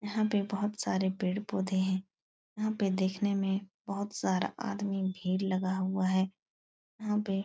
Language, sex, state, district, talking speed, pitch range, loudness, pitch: Hindi, female, Uttar Pradesh, Etah, 170 wpm, 190-205 Hz, -32 LUFS, 195 Hz